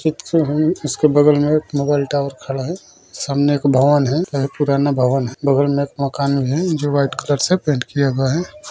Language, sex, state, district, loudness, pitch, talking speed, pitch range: Hindi, male, Bihar, Jamui, -17 LUFS, 145 Hz, 220 wpm, 140-150 Hz